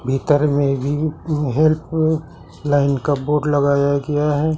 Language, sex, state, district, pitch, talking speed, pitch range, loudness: Hindi, male, Jharkhand, Ranchi, 145 Hz, 130 wpm, 140-155 Hz, -18 LUFS